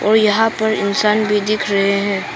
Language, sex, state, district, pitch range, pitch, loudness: Hindi, female, Arunachal Pradesh, Papum Pare, 200-215 Hz, 210 Hz, -16 LUFS